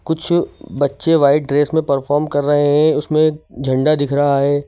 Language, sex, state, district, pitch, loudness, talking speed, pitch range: Hindi, male, Madhya Pradesh, Bhopal, 145 Hz, -16 LUFS, 180 wpm, 140-155 Hz